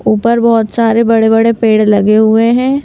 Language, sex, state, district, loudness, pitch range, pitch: Hindi, female, Madhya Pradesh, Bhopal, -10 LUFS, 220-230 Hz, 225 Hz